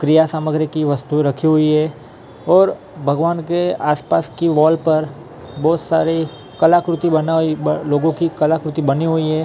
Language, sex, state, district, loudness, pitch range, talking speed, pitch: Hindi, male, Maharashtra, Mumbai Suburban, -17 LUFS, 150-165 Hz, 160 wpm, 155 Hz